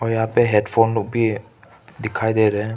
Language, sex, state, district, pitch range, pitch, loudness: Hindi, male, Arunachal Pradesh, Papum Pare, 110-115 Hz, 110 Hz, -19 LUFS